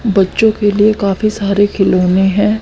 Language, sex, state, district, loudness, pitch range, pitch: Hindi, female, Haryana, Charkhi Dadri, -12 LUFS, 195-215 Hz, 205 Hz